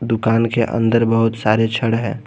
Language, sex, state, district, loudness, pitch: Hindi, male, Jharkhand, Garhwa, -17 LUFS, 115 Hz